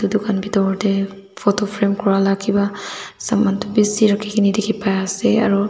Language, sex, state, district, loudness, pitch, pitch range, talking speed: Nagamese, female, Nagaland, Dimapur, -18 LUFS, 205 Hz, 195-210 Hz, 190 wpm